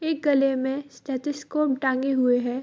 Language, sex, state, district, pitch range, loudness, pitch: Hindi, female, Bihar, Madhepura, 260-290 Hz, -24 LUFS, 270 Hz